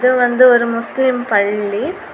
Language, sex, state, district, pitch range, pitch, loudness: Tamil, female, Tamil Nadu, Kanyakumari, 210-250 Hz, 240 Hz, -14 LUFS